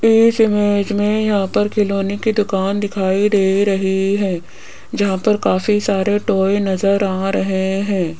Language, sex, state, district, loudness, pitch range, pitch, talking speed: Hindi, female, Rajasthan, Jaipur, -17 LUFS, 195-210 Hz, 200 Hz, 155 wpm